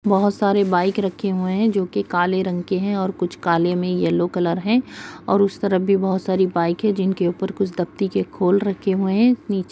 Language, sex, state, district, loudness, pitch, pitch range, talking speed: Kumaoni, female, Uttarakhand, Uttarkashi, -20 LUFS, 190 Hz, 180-200 Hz, 215 wpm